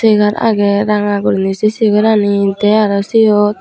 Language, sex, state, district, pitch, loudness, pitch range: Chakma, female, Tripura, Unakoti, 210 Hz, -12 LUFS, 200-215 Hz